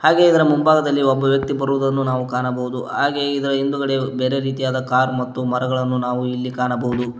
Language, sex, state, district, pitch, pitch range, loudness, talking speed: Kannada, male, Karnataka, Koppal, 130 Hz, 125-140 Hz, -19 LUFS, 160 wpm